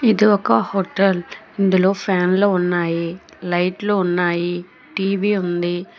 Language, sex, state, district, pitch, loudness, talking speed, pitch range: Telugu, female, Telangana, Hyderabad, 185 Hz, -19 LUFS, 100 wpm, 175-195 Hz